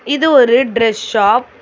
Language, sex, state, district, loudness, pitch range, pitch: Tamil, female, Tamil Nadu, Chennai, -12 LUFS, 230-280 Hz, 245 Hz